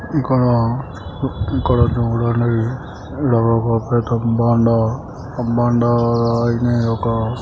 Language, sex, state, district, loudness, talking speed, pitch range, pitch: Telugu, male, Andhra Pradesh, Guntur, -17 LUFS, 75 wpm, 115-120 Hz, 120 Hz